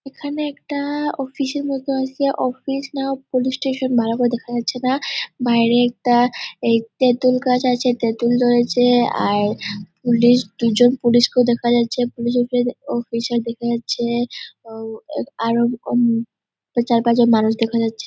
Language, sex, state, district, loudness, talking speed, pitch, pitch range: Bengali, female, West Bengal, Dakshin Dinajpur, -19 LUFS, 135 wpm, 240 Hz, 235-255 Hz